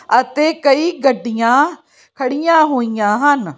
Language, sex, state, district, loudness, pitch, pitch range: Punjabi, female, Chandigarh, Chandigarh, -15 LUFS, 275 Hz, 240-300 Hz